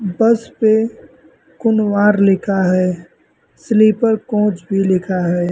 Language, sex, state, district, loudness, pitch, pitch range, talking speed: Hindi, male, Uttar Pradesh, Lucknow, -15 LUFS, 205 Hz, 185-220 Hz, 110 wpm